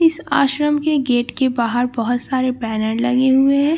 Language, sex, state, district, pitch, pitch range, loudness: Hindi, female, Bihar, Katihar, 255 Hz, 240-285 Hz, -18 LUFS